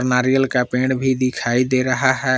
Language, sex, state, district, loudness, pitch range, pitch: Hindi, male, Jharkhand, Palamu, -18 LUFS, 125-130 Hz, 130 Hz